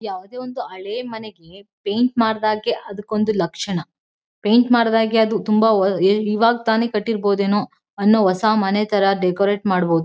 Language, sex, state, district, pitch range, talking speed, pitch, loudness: Kannada, female, Karnataka, Mysore, 195-220 Hz, 120 wpm, 210 Hz, -19 LUFS